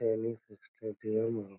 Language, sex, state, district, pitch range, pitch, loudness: Magahi, male, Bihar, Lakhisarai, 110-115 Hz, 110 Hz, -35 LUFS